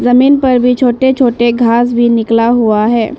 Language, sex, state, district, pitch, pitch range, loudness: Hindi, female, Arunachal Pradesh, Lower Dibang Valley, 240 Hz, 230-250 Hz, -10 LUFS